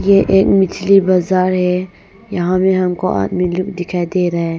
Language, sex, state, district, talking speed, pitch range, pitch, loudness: Hindi, female, Arunachal Pradesh, Longding, 185 wpm, 180-190 Hz, 185 Hz, -15 LUFS